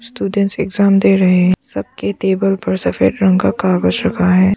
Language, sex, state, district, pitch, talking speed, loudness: Hindi, female, Arunachal Pradesh, Papum Pare, 185 Hz, 185 wpm, -14 LUFS